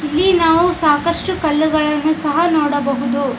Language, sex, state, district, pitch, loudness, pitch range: Kannada, female, Karnataka, Bijapur, 310 Hz, -15 LUFS, 295-335 Hz